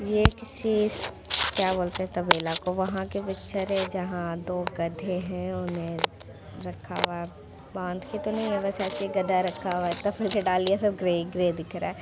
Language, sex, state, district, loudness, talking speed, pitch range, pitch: Hindi, female, Bihar, Muzaffarpur, -27 LUFS, 200 wpm, 175-195 Hz, 185 Hz